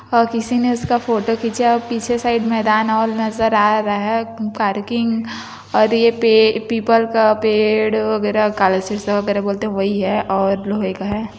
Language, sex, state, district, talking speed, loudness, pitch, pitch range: Hindi, female, Chhattisgarh, Bilaspur, 165 wpm, -17 LUFS, 220 Hz, 210-230 Hz